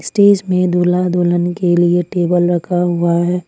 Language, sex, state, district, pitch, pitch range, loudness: Hindi, female, Jharkhand, Ranchi, 175 Hz, 175-180 Hz, -14 LUFS